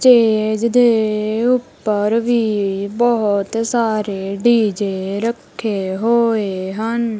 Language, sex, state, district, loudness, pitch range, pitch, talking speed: Punjabi, female, Punjab, Kapurthala, -17 LUFS, 205-235 Hz, 220 Hz, 85 wpm